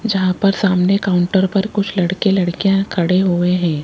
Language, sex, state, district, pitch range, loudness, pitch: Hindi, female, Rajasthan, Jaipur, 180-195 Hz, -16 LUFS, 190 Hz